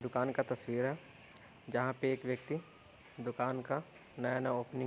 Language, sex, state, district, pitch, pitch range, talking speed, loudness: Hindi, male, Uttar Pradesh, Varanasi, 130 Hz, 125-135 Hz, 170 wpm, -38 LUFS